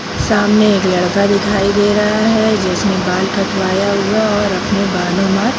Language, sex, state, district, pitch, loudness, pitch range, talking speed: Hindi, female, Bihar, Jamui, 200 Hz, -14 LUFS, 190-210 Hz, 180 wpm